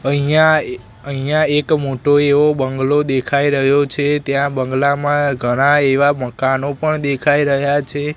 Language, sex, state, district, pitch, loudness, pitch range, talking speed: Gujarati, male, Gujarat, Gandhinagar, 140 Hz, -15 LUFS, 135-145 Hz, 140 wpm